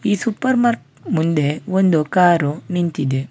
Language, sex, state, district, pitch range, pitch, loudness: Kannada, male, Karnataka, Bangalore, 150-205 Hz, 175 Hz, -18 LUFS